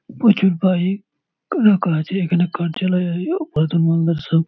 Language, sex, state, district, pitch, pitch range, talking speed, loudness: Bengali, male, West Bengal, Malda, 180 Hz, 165-195 Hz, 120 wpm, -18 LUFS